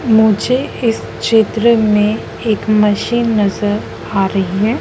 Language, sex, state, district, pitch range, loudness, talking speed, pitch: Hindi, female, Madhya Pradesh, Dhar, 205-230 Hz, -14 LUFS, 125 wpm, 215 Hz